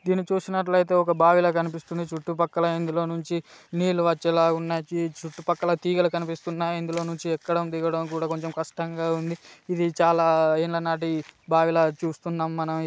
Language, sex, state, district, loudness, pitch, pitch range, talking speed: Telugu, male, Telangana, Nalgonda, -25 LUFS, 165 Hz, 165-170 Hz, 145 wpm